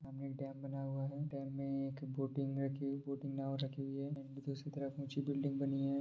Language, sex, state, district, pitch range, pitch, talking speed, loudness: Hindi, male, Bihar, Madhepura, 135-140 Hz, 140 Hz, 260 wpm, -42 LUFS